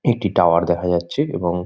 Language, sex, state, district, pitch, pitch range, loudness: Bengali, male, West Bengal, Kolkata, 85 Hz, 85-90 Hz, -19 LUFS